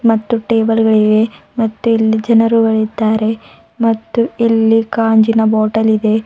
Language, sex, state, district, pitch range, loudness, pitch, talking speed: Kannada, female, Karnataka, Bidar, 220-230 Hz, -13 LUFS, 225 Hz, 95 wpm